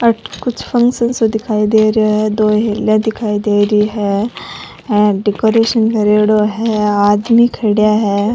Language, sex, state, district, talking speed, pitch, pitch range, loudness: Rajasthani, female, Rajasthan, Churu, 100 wpm, 215 Hz, 210-225 Hz, -13 LUFS